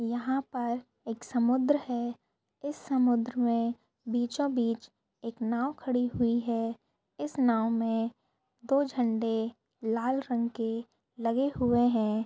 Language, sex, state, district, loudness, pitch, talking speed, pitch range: Hindi, female, Maharashtra, Sindhudurg, -30 LUFS, 240 Hz, 125 wpm, 230-255 Hz